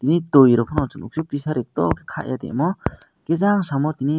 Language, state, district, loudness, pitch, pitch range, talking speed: Kokborok, Tripura, West Tripura, -20 LUFS, 150 Hz, 140-160 Hz, 200 wpm